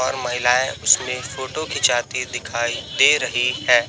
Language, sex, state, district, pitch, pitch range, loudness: Hindi, male, Chhattisgarh, Raipur, 125 Hz, 120-130 Hz, -19 LUFS